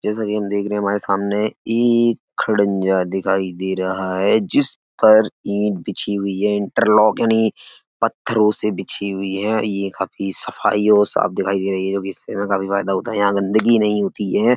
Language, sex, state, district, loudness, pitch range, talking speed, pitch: Hindi, male, Uttar Pradesh, Etah, -19 LUFS, 95-105 Hz, 200 wpm, 100 Hz